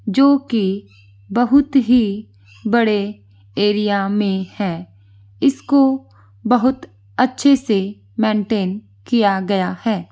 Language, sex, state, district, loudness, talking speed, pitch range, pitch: Hindi, female, Jharkhand, Sahebganj, -17 LUFS, 95 wpm, 170-245 Hz, 205 Hz